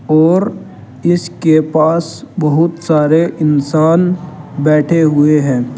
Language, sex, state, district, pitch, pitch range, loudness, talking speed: Hindi, male, Uttar Pradesh, Saharanpur, 155 Hz, 150-170 Hz, -12 LUFS, 95 wpm